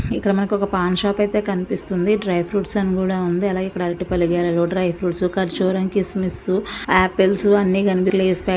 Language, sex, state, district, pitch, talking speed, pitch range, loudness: Telugu, female, Andhra Pradesh, Visakhapatnam, 190 Hz, 190 wpm, 180-200 Hz, -20 LUFS